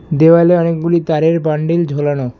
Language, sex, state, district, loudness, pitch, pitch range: Bengali, male, West Bengal, Alipurduar, -13 LUFS, 165 Hz, 155-170 Hz